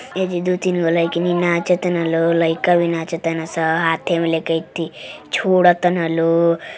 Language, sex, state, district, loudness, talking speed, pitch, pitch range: Bhojpuri, female, Uttar Pradesh, Deoria, -18 LUFS, 140 wpm, 170 Hz, 165-175 Hz